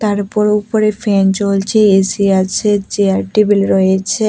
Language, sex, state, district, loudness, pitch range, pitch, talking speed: Bengali, female, Tripura, West Tripura, -13 LUFS, 195-210 Hz, 200 Hz, 140 wpm